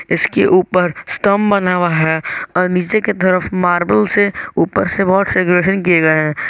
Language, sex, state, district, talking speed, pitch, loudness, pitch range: Hindi, male, Jharkhand, Garhwa, 165 wpm, 180 Hz, -14 LUFS, 175-195 Hz